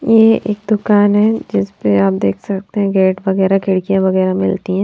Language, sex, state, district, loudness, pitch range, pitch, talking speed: Hindi, female, Haryana, Rohtak, -14 LUFS, 185-205 Hz, 195 Hz, 185 wpm